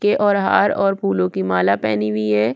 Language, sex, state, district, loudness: Hindi, female, Chhattisgarh, Kabirdham, -18 LUFS